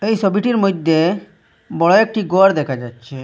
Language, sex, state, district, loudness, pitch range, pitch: Bengali, male, Assam, Hailakandi, -16 LUFS, 155-210 Hz, 190 Hz